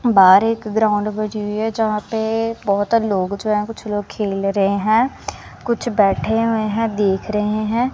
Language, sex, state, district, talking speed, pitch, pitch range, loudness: Hindi, female, Punjab, Kapurthala, 165 wpm, 215 Hz, 205-225 Hz, -18 LUFS